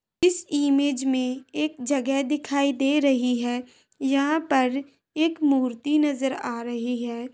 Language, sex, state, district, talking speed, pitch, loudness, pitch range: Hindi, female, Bihar, Madhepura, 140 wpm, 275 Hz, -24 LUFS, 255-290 Hz